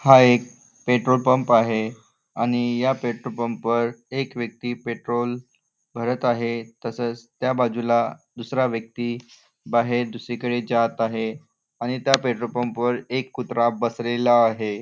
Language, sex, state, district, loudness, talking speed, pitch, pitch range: Marathi, male, Maharashtra, Nagpur, -23 LUFS, 125 wpm, 120 Hz, 115-125 Hz